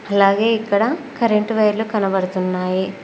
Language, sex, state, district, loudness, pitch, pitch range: Telugu, female, Telangana, Mahabubabad, -18 LUFS, 210 Hz, 190-220 Hz